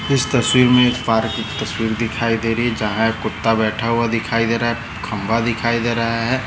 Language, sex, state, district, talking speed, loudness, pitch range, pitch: Hindi, male, Maharashtra, Nagpur, 230 wpm, -18 LUFS, 110-120 Hz, 115 Hz